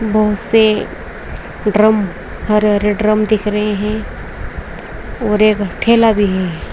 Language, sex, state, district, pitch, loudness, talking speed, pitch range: Hindi, female, Uttar Pradesh, Saharanpur, 210 Hz, -14 LUFS, 115 wpm, 210-215 Hz